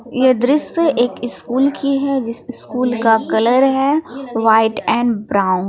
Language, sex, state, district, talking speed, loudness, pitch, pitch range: Hindi, female, Jharkhand, Palamu, 135 wpm, -16 LUFS, 245 Hz, 230-270 Hz